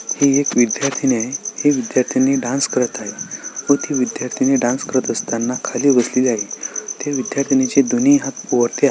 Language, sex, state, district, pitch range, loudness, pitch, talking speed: Marathi, male, Maharashtra, Solapur, 125-140 Hz, -18 LUFS, 135 Hz, 160 wpm